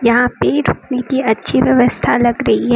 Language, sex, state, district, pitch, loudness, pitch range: Hindi, female, Uttar Pradesh, Lucknow, 245 Hz, -14 LUFS, 240-255 Hz